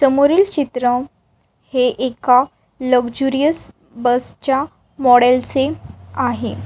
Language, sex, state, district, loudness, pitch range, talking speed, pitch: Marathi, female, Maharashtra, Solapur, -17 LUFS, 250-280 Hz, 90 wpm, 260 Hz